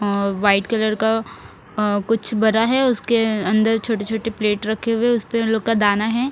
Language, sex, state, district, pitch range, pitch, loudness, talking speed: Hindi, female, Punjab, Fazilka, 210-225 Hz, 220 Hz, -19 LUFS, 190 wpm